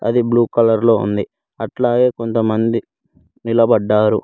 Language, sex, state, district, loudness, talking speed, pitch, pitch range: Telugu, male, Telangana, Mahabubabad, -16 LUFS, 115 wpm, 115 Hz, 110-120 Hz